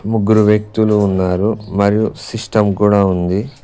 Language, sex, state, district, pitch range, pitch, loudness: Telugu, male, Telangana, Mahabubabad, 100-110 Hz, 105 Hz, -14 LUFS